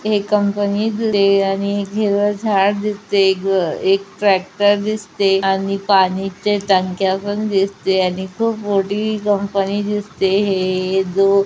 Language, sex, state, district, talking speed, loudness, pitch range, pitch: Marathi, female, Maharashtra, Chandrapur, 120 wpm, -17 LUFS, 195-205 Hz, 200 Hz